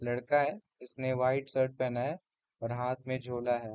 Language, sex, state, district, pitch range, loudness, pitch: Hindi, male, Uttar Pradesh, Deoria, 120-130 Hz, -33 LUFS, 130 Hz